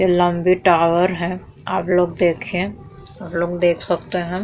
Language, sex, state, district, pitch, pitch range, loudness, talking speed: Hindi, female, Uttar Pradesh, Muzaffarnagar, 175 Hz, 170-180 Hz, -19 LUFS, 160 wpm